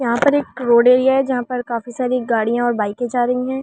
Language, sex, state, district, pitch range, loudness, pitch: Hindi, female, Delhi, New Delhi, 235-255 Hz, -17 LUFS, 245 Hz